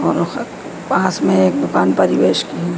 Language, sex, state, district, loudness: Hindi, female, Madhya Pradesh, Dhar, -16 LUFS